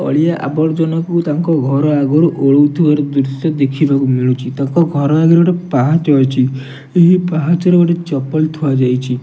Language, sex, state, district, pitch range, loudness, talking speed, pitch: Odia, male, Odisha, Nuapada, 135-165 Hz, -13 LUFS, 145 wpm, 150 Hz